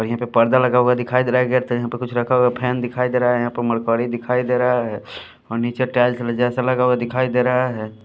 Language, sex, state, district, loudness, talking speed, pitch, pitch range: Hindi, male, Haryana, Charkhi Dadri, -19 LUFS, 260 wpm, 125 Hz, 120-125 Hz